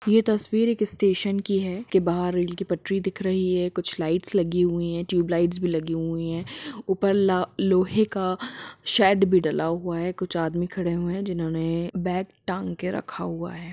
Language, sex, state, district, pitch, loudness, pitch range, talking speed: Hindi, female, Jharkhand, Jamtara, 180 Hz, -25 LUFS, 170-195 Hz, 190 wpm